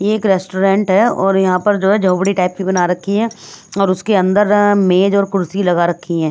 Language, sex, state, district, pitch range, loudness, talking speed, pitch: Hindi, female, Punjab, Pathankot, 185-200 Hz, -14 LUFS, 230 wpm, 195 Hz